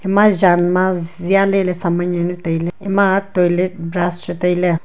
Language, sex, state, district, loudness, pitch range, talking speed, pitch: Wancho, female, Arunachal Pradesh, Longding, -16 LUFS, 175-190 Hz, 160 wpm, 180 Hz